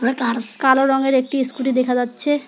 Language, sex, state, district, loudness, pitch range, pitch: Bengali, female, West Bengal, Alipurduar, -18 LUFS, 245-270 Hz, 260 Hz